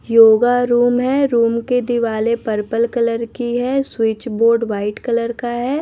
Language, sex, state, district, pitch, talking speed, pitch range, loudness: Hindi, female, Bihar, Patna, 235 Hz, 165 wpm, 230-245 Hz, -17 LUFS